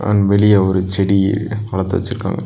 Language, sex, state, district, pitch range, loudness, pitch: Tamil, male, Tamil Nadu, Nilgiris, 95-105 Hz, -16 LUFS, 100 Hz